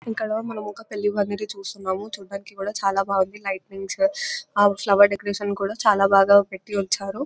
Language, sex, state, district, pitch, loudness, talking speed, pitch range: Telugu, female, Telangana, Nalgonda, 200 Hz, -22 LUFS, 155 wpm, 195-210 Hz